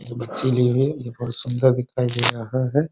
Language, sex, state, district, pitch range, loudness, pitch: Hindi, male, Bihar, Muzaffarpur, 120-130 Hz, -21 LUFS, 125 Hz